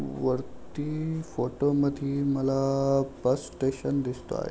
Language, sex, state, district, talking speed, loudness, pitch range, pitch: Marathi, male, Maharashtra, Aurangabad, 95 wpm, -28 LUFS, 130-140 Hz, 135 Hz